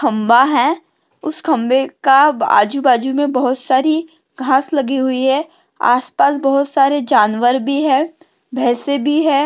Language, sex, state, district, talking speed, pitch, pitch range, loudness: Hindi, female, Maharashtra, Sindhudurg, 140 wpm, 275 Hz, 260-300 Hz, -15 LUFS